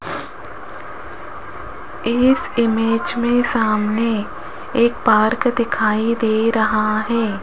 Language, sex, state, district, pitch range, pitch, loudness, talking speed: Hindi, female, Rajasthan, Jaipur, 215-235 Hz, 225 Hz, -18 LUFS, 80 wpm